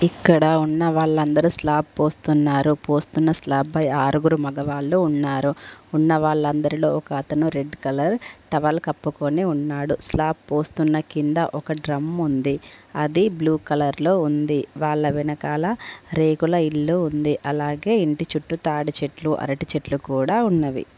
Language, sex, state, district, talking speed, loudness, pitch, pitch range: Telugu, female, Telangana, Komaram Bheem, 130 wpm, -21 LUFS, 150 Hz, 145-160 Hz